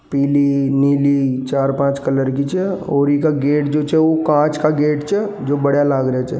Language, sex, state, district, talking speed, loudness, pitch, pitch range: Marwari, male, Rajasthan, Nagaur, 225 wpm, -16 LUFS, 145 Hz, 140-150 Hz